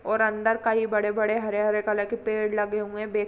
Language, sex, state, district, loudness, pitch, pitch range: Hindi, female, Uttar Pradesh, Varanasi, -25 LUFS, 215 Hz, 210-220 Hz